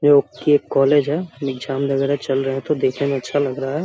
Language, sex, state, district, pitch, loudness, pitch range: Hindi, male, Bihar, Samastipur, 140 Hz, -19 LUFS, 135-145 Hz